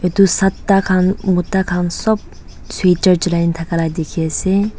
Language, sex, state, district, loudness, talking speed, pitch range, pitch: Nagamese, female, Nagaland, Dimapur, -16 LUFS, 150 wpm, 170-195 Hz, 180 Hz